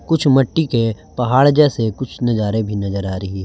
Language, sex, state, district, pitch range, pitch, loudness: Hindi, male, Jharkhand, Garhwa, 100-135 Hz, 115 Hz, -17 LUFS